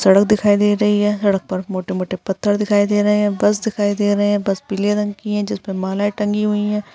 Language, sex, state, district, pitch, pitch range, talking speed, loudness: Hindi, female, Bihar, Gaya, 205 Hz, 195-210 Hz, 250 wpm, -18 LUFS